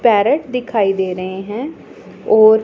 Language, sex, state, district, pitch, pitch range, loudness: Hindi, female, Punjab, Pathankot, 220 Hz, 195-250 Hz, -16 LUFS